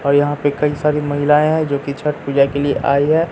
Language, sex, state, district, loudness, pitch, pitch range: Hindi, male, Bihar, Katihar, -16 LUFS, 145 Hz, 140-150 Hz